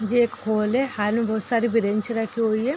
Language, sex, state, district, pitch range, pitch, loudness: Hindi, female, Bihar, Darbhanga, 215-235 Hz, 225 Hz, -23 LUFS